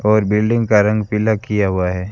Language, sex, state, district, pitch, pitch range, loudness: Hindi, male, Rajasthan, Bikaner, 105 Hz, 100-110 Hz, -16 LUFS